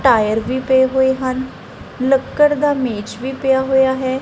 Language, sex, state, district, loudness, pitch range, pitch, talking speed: Punjabi, female, Punjab, Kapurthala, -16 LUFS, 255-265 Hz, 260 Hz, 170 wpm